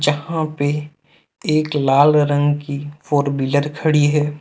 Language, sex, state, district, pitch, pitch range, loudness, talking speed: Hindi, male, Jharkhand, Deoghar, 145 Hz, 145-150 Hz, -18 LUFS, 135 wpm